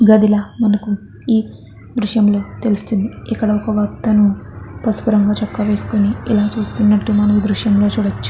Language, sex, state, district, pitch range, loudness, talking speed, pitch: Telugu, female, Andhra Pradesh, Chittoor, 205-215 Hz, -16 LUFS, 130 wpm, 210 Hz